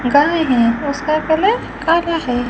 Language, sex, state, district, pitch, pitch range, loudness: Hindi, female, Rajasthan, Bikaner, 305 Hz, 250-330 Hz, -16 LUFS